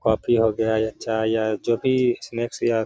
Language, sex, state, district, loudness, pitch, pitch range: Hindi, male, Bihar, Gaya, -22 LUFS, 110 Hz, 110-120 Hz